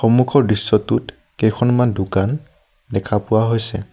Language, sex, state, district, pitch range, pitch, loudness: Assamese, male, Assam, Sonitpur, 105-125 Hz, 110 Hz, -18 LUFS